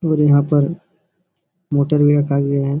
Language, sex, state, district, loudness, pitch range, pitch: Hindi, male, Bihar, Supaul, -16 LUFS, 140-170 Hz, 145 Hz